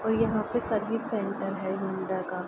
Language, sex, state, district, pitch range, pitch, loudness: Hindi, female, Uttar Pradesh, Ghazipur, 190-220 Hz, 205 Hz, -30 LUFS